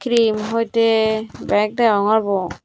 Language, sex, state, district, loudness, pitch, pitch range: Chakma, female, Tripura, Unakoti, -18 LUFS, 220 Hz, 210-230 Hz